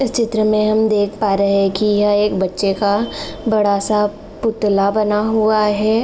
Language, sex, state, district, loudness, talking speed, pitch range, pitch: Hindi, female, Uttar Pradesh, Jalaun, -16 LUFS, 180 wpm, 205-215 Hz, 210 Hz